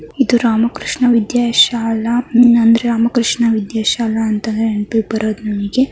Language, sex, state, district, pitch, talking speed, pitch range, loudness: Kannada, male, Karnataka, Mysore, 230 Hz, 130 wpm, 220-240 Hz, -14 LUFS